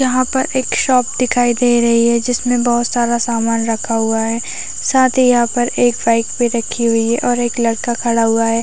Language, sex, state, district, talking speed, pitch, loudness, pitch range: Hindi, female, Chhattisgarh, Raigarh, 215 wpm, 240 Hz, -15 LUFS, 230-245 Hz